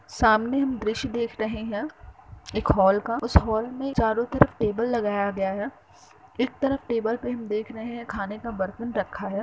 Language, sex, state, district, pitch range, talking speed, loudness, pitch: Hindi, female, Uttar Pradesh, Hamirpur, 210-240 Hz, 195 wpm, -26 LUFS, 225 Hz